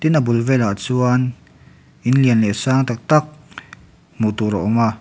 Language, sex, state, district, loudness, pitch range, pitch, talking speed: Mizo, male, Mizoram, Aizawl, -18 LUFS, 110-130 Hz, 120 Hz, 205 wpm